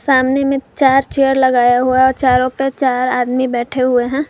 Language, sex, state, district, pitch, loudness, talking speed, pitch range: Hindi, female, Jharkhand, Garhwa, 260 Hz, -14 LUFS, 195 wpm, 250-270 Hz